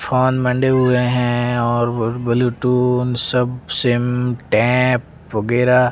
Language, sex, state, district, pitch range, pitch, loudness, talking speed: Hindi, male, Rajasthan, Jaisalmer, 120-125 Hz, 125 Hz, -17 LUFS, 100 wpm